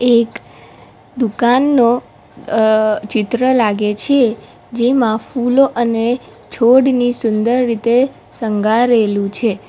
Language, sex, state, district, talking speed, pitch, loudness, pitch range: Gujarati, female, Gujarat, Valsad, 85 wpm, 235 Hz, -15 LUFS, 220-250 Hz